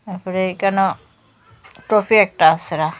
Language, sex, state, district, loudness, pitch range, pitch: Bengali, female, Assam, Hailakandi, -17 LUFS, 170-200 Hz, 185 Hz